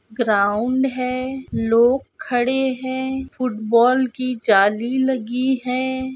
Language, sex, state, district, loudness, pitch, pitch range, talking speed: Hindi, female, Chhattisgarh, Korba, -20 LUFS, 255 Hz, 235-260 Hz, 100 wpm